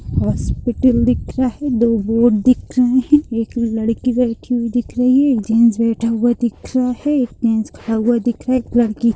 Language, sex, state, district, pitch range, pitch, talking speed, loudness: Hindi, female, Bihar, Gopalganj, 230-250 Hz, 240 Hz, 210 wpm, -16 LUFS